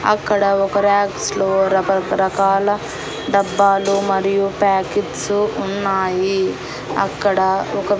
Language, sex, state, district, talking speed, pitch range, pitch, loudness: Telugu, female, Andhra Pradesh, Annamaya, 90 wpm, 190-200 Hz, 195 Hz, -17 LUFS